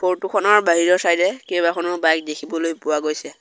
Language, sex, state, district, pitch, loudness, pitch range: Assamese, male, Assam, Sonitpur, 170 Hz, -19 LUFS, 160-185 Hz